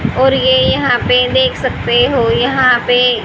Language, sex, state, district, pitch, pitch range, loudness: Hindi, female, Haryana, Rohtak, 255 Hz, 250-260 Hz, -12 LUFS